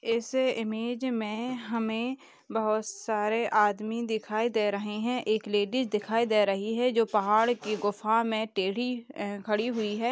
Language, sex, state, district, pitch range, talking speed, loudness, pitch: Hindi, female, Uttar Pradesh, Jyotiba Phule Nagar, 210-235 Hz, 160 wpm, -29 LUFS, 220 Hz